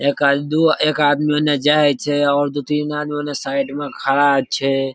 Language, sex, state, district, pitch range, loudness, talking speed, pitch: Maithili, male, Bihar, Darbhanga, 140-150 Hz, -17 LUFS, 195 wpm, 145 Hz